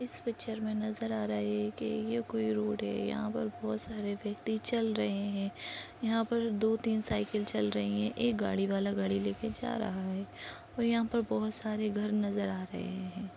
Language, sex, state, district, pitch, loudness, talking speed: Hindi, female, Uttar Pradesh, Ghazipur, 205 Hz, -34 LUFS, 205 wpm